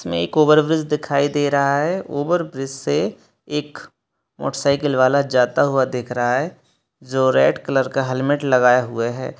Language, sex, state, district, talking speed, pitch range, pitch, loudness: Hindi, male, Bihar, Begusarai, 160 wpm, 130-145 Hz, 135 Hz, -19 LUFS